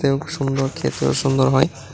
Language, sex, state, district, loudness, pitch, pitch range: Bengali, male, Tripura, West Tripura, -20 LUFS, 135 Hz, 130-135 Hz